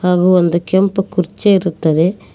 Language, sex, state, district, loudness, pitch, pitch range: Kannada, female, Karnataka, Koppal, -14 LUFS, 180 Hz, 175-195 Hz